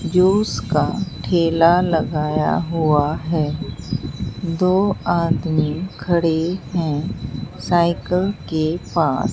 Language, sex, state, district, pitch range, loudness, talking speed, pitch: Hindi, female, Bihar, Katihar, 155-180 Hz, -20 LUFS, 85 wpm, 165 Hz